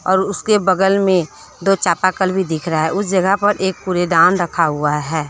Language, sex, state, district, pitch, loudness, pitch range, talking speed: Hindi, female, Jharkhand, Deoghar, 185 Hz, -16 LUFS, 165-195 Hz, 205 wpm